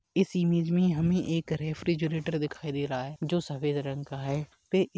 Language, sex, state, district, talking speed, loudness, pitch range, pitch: Hindi, male, Bihar, Darbhanga, 205 wpm, -30 LUFS, 145-175 Hz, 160 Hz